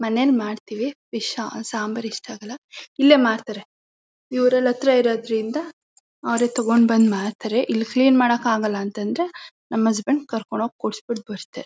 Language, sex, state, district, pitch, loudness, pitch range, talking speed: Kannada, female, Karnataka, Mysore, 235 Hz, -21 LUFS, 220-260 Hz, 145 wpm